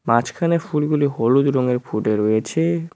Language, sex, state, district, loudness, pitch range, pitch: Bengali, male, West Bengal, Cooch Behar, -19 LUFS, 115-160 Hz, 140 Hz